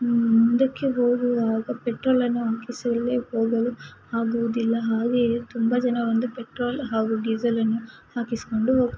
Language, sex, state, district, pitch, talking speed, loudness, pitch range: Kannada, female, Karnataka, Mysore, 235 Hz, 35 wpm, -24 LUFS, 230-245 Hz